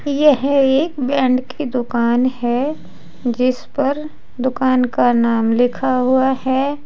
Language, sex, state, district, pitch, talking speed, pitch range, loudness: Hindi, female, Uttar Pradesh, Saharanpur, 260 Hz, 120 wpm, 245-280 Hz, -17 LUFS